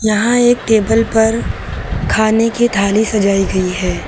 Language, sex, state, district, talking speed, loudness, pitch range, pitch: Hindi, female, Uttar Pradesh, Lucknow, 145 wpm, -14 LUFS, 200-230 Hz, 220 Hz